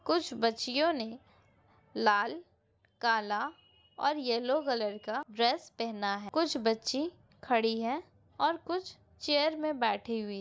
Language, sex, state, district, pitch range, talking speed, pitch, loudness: Hindi, female, Andhra Pradesh, Anantapur, 225-305 Hz, 125 wpm, 245 Hz, -32 LUFS